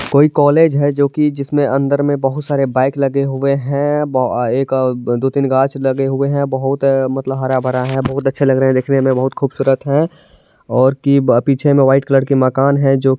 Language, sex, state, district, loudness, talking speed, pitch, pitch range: Hindi, male, Bihar, Madhepura, -15 LUFS, 220 wpm, 135 Hz, 135-140 Hz